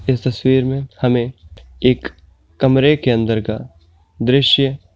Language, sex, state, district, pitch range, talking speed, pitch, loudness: Hindi, male, Uttar Pradesh, Jyotiba Phule Nagar, 95-130 Hz, 135 wpm, 125 Hz, -16 LUFS